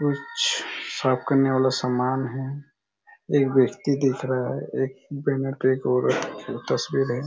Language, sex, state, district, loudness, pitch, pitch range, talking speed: Hindi, male, Chhattisgarh, Raigarh, -24 LUFS, 135 Hz, 130-140 Hz, 130 wpm